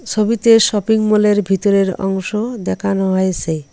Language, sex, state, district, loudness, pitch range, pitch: Bengali, female, West Bengal, Cooch Behar, -15 LUFS, 190-215 Hz, 200 Hz